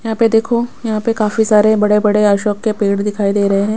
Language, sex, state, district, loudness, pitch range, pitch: Hindi, female, Bihar, West Champaran, -14 LUFS, 205-225 Hz, 210 Hz